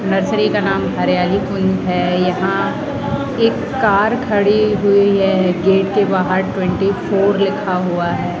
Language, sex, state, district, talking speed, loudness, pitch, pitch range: Hindi, male, Rajasthan, Jaipur, 145 wpm, -16 LUFS, 195 Hz, 180-200 Hz